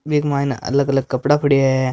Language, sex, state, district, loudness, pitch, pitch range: Marwari, male, Rajasthan, Nagaur, -18 LUFS, 140 Hz, 130-145 Hz